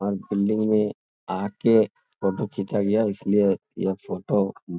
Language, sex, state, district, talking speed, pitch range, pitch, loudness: Hindi, male, Bihar, Jamui, 150 wpm, 100-105 Hz, 100 Hz, -24 LUFS